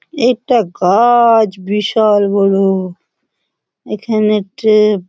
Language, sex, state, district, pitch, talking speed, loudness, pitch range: Bengali, female, West Bengal, Malda, 215 Hz, 80 wpm, -12 LUFS, 195-230 Hz